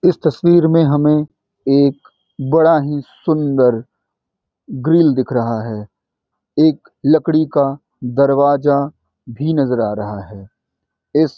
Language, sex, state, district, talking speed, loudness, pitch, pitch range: Hindi, male, Bihar, Muzaffarpur, 110 wpm, -15 LUFS, 140 Hz, 125-155 Hz